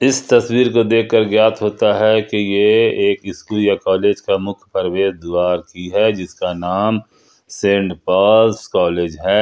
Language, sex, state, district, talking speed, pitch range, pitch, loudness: Hindi, male, Jharkhand, Ranchi, 155 wpm, 95-110 Hz, 105 Hz, -16 LUFS